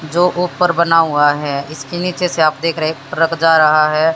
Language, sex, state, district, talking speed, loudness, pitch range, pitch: Hindi, female, Haryana, Jhajjar, 230 wpm, -14 LUFS, 155-170 Hz, 160 Hz